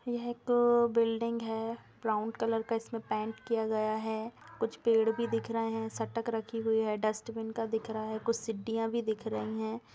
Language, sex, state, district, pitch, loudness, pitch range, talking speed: Hindi, female, Bihar, Gopalganj, 225 Hz, -33 LUFS, 220-230 Hz, 200 wpm